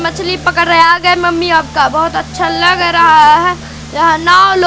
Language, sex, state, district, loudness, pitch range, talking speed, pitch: Hindi, female, Madhya Pradesh, Katni, -9 LUFS, 330-360 Hz, 190 wpm, 345 Hz